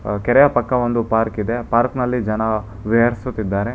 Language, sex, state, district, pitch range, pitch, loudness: Kannada, male, Karnataka, Bangalore, 110-120 Hz, 115 Hz, -18 LUFS